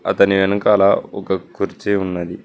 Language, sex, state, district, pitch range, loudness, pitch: Telugu, male, Telangana, Mahabubabad, 90-100 Hz, -17 LUFS, 95 Hz